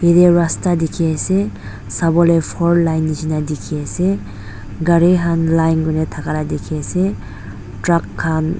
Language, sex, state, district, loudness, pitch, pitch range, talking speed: Nagamese, female, Nagaland, Dimapur, -17 LUFS, 160 Hz, 105-170 Hz, 135 wpm